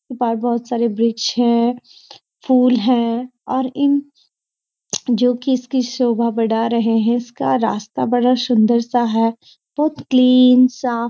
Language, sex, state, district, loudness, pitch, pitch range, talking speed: Hindi, female, Uttarakhand, Uttarkashi, -17 LUFS, 245 Hz, 235-255 Hz, 135 wpm